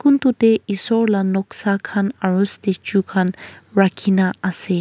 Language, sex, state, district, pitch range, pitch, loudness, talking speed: Nagamese, female, Nagaland, Kohima, 190-215 Hz, 195 Hz, -19 LUFS, 150 wpm